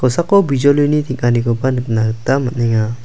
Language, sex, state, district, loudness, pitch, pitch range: Garo, male, Meghalaya, South Garo Hills, -15 LUFS, 125 Hz, 120-140 Hz